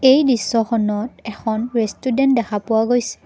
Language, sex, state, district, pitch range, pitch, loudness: Assamese, female, Assam, Kamrup Metropolitan, 220-250 Hz, 230 Hz, -19 LUFS